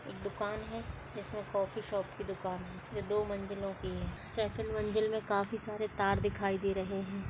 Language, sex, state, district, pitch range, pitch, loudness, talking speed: Hindi, female, Chhattisgarh, Sarguja, 195-215 Hz, 200 Hz, -36 LUFS, 195 wpm